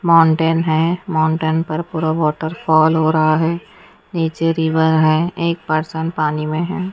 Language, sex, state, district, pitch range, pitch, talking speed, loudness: Hindi, female, Odisha, Nuapada, 155-165 Hz, 160 Hz, 145 wpm, -17 LUFS